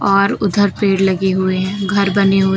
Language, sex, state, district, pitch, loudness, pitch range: Hindi, female, Uttar Pradesh, Lucknow, 195 Hz, -15 LUFS, 190-200 Hz